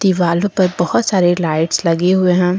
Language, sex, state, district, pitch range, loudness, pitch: Hindi, female, Jharkhand, Deoghar, 170-190 Hz, -15 LUFS, 180 Hz